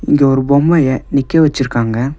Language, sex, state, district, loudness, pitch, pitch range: Tamil, male, Tamil Nadu, Nilgiris, -13 LUFS, 140 Hz, 130-145 Hz